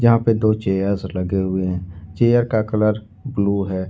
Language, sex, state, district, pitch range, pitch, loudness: Hindi, male, Jharkhand, Ranchi, 95-110 Hz, 100 Hz, -20 LUFS